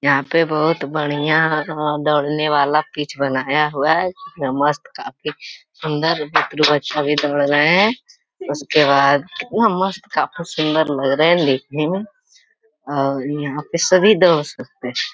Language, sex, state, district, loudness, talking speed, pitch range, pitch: Hindi, male, Bihar, Jamui, -18 LUFS, 145 wpm, 145-175 Hz, 150 Hz